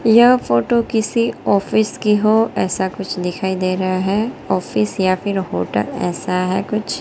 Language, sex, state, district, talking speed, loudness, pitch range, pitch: Hindi, female, Gujarat, Gandhinagar, 160 wpm, -18 LUFS, 185-220 Hz, 195 Hz